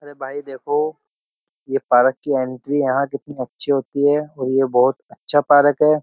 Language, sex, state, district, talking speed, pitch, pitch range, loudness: Hindi, male, Uttar Pradesh, Jyotiba Phule Nagar, 170 wpm, 140 Hz, 130-145 Hz, -19 LUFS